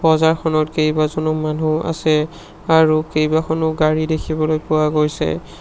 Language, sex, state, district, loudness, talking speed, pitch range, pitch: Assamese, male, Assam, Sonitpur, -18 LUFS, 105 wpm, 155-160 Hz, 155 Hz